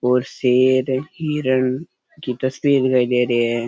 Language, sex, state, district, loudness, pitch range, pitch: Rajasthani, male, Rajasthan, Churu, -19 LUFS, 125-135 Hz, 130 Hz